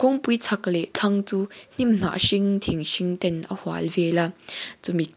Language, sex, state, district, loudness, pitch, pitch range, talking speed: Mizo, female, Mizoram, Aizawl, -22 LUFS, 190 Hz, 170-205 Hz, 185 wpm